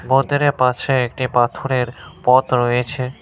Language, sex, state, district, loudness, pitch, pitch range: Bengali, male, West Bengal, Cooch Behar, -18 LUFS, 130 Hz, 125-135 Hz